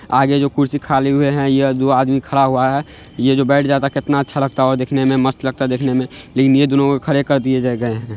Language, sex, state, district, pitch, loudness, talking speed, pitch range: Hindi, male, Bihar, Araria, 135 Hz, -16 LUFS, 270 wpm, 130-140 Hz